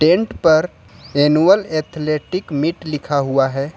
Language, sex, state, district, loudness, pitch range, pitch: Hindi, male, Jharkhand, Ranchi, -17 LUFS, 145-165 Hz, 155 Hz